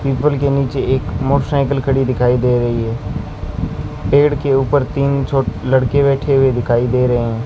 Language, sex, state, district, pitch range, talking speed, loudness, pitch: Hindi, male, Rajasthan, Bikaner, 125-140 Hz, 185 wpm, -16 LUFS, 135 Hz